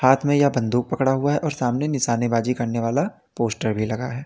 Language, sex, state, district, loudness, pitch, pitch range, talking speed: Hindi, male, Uttar Pradesh, Lalitpur, -22 LUFS, 125 Hz, 115-140 Hz, 225 wpm